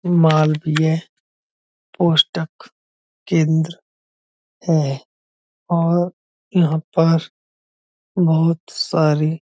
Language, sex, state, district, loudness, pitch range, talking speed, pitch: Hindi, male, Uttar Pradesh, Budaun, -18 LUFS, 155-170 Hz, 65 wpm, 160 Hz